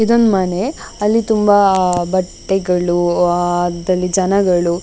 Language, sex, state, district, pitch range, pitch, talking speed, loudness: Kannada, female, Karnataka, Dakshina Kannada, 175-200 Hz, 185 Hz, 135 wpm, -15 LUFS